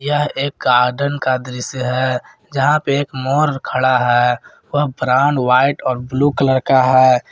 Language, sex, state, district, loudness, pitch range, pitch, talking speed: Hindi, male, Jharkhand, Garhwa, -16 LUFS, 125-140 Hz, 130 Hz, 165 wpm